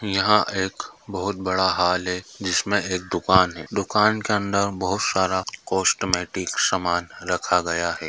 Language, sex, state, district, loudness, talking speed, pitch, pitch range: Hindi, male, Andhra Pradesh, Visakhapatnam, -22 LUFS, 140 wpm, 95 Hz, 90-100 Hz